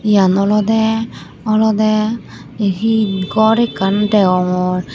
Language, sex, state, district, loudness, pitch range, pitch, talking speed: Chakma, female, Tripura, Unakoti, -15 LUFS, 195-220 Hz, 210 Hz, 95 wpm